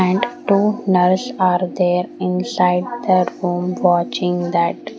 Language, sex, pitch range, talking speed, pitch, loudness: English, female, 180-185 Hz, 130 wpm, 180 Hz, -18 LUFS